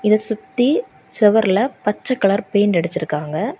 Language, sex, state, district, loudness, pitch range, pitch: Tamil, female, Tamil Nadu, Kanyakumari, -18 LUFS, 180-220 Hz, 210 Hz